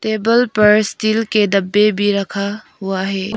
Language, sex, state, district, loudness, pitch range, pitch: Hindi, female, Arunachal Pradesh, Lower Dibang Valley, -15 LUFS, 200-215 Hz, 210 Hz